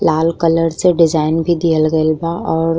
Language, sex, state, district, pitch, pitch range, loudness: Bhojpuri, female, Uttar Pradesh, Ghazipur, 165 Hz, 160-165 Hz, -15 LUFS